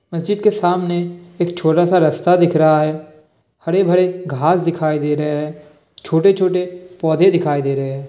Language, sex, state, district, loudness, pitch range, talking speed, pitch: Hindi, male, Bihar, Kishanganj, -16 LUFS, 150-180 Hz, 180 wpm, 170 Hz